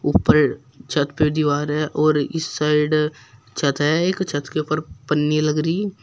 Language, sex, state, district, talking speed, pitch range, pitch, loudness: Hindi, female, Uttar Pradesh, Shamli, 180 wpm, 145-155 Hz, 150 Hz, -20 LUFS